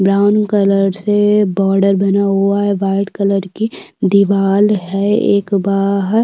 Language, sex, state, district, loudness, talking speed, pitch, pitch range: Hindi, female, Uttarakhand, Tehri Garhwal, -14 LUFS, 135 wpm, 200 Hz, 195-205 Hz